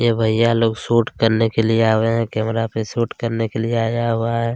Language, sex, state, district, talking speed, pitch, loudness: Hindi, male, Chhattisgarh, Kabirdham, 250 wpm, 115 Hz, -19 LUFS